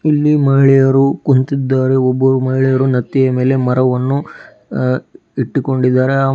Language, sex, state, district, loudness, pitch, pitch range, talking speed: Kannada, female, Karnataka, Bidar, -14 LUFS, 130 Hz, 130-135 Hz, 115 wpm